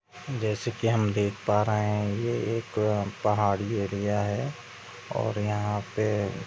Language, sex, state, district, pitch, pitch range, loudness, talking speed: Hindi, male, Chhattisgarh, Rajnandgaon, 105 Hz, 105-115 Hz, -28 LUFS, 140 wpm